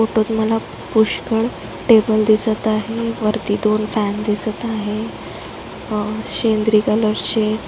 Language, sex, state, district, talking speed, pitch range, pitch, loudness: Marathi, female, Maharashtra, Dhule, 115 wpm, 215-225 Hz, 220 Hz, -17 LUFS